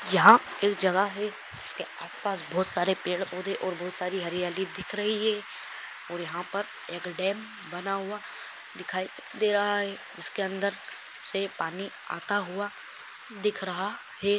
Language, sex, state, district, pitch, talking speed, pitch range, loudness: Hindi, male, Maharashtra, Solapur, 195 Hz, 155 wpm, 180-205 Hz, -29 LUFS